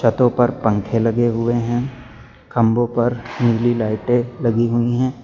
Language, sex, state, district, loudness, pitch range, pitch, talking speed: Hindi, male, Uttar Pradesh, Lucknow, -18 LUFS, 115-120 Hz, 120 Hz, 150 wpm